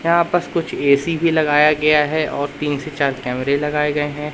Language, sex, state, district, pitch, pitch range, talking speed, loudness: Hindi, male, Madhya Pradesh, Katni, 150 Hz, 145-155 Hz, 220 wpm, -18 LUFS